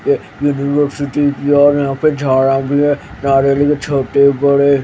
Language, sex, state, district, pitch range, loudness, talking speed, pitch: Hindi, male, Haryana, Jhajjar, 140-145 Hz, -14 LUFS, 225 wpm, 140 Hz